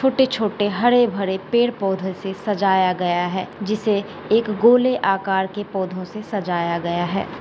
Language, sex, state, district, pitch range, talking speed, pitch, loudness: Hindi, female, Bihar, Gopalganj, 190-215 Hz, 140 wpm, 195 Hz, -20 LUFS